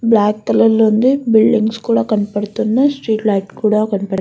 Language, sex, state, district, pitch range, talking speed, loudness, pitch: Telugu, female, Andhra Pradesh, Guntur, 210-230 Hz, 155 wpm, -14 LUFS, 220 Hz